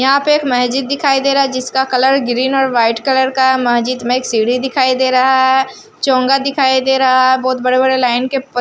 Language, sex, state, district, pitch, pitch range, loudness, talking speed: Hindi, female, Bihar, Patna, 260 Hz, 255-270 Hz, -13 LUFS, 235 wpm